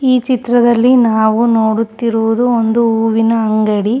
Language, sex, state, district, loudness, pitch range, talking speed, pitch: Kannada, female, Karnataka, Shimoga, -12 LUFS, 220-240 Hz, 105 wpm, 230 Hz